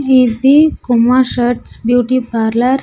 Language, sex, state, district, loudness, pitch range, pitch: Telugu, female, Andhra Pradesh, Sri Satya Sai, -12 LUFS, 240-260 Hz, 250 Hz